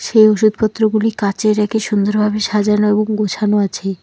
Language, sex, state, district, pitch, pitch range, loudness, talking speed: Bengali, female, West Bengal, Alipurduar, 210 Hz, 210-215 Hz, -15 LUFS, 135 wpm